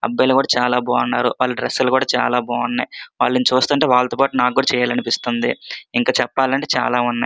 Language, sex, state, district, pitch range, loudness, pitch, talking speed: Telugu, male, Andhra Pradesh, Srikakulam, 125-130 Hz, -18 LUFS, 125 Hz, 190 wpm